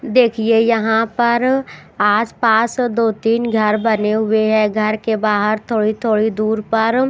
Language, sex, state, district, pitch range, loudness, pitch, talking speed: Hindi, female, Haryana, Jhajjar, 215-230 Hz, -16 LUFS, 220 Hz, 145 wpm